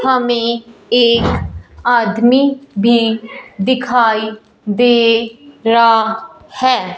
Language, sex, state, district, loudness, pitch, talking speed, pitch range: Hindi, male, Punjab, Fazilka, -14 LUFS, 230 Hz, 70 wpm, 220-245 Hz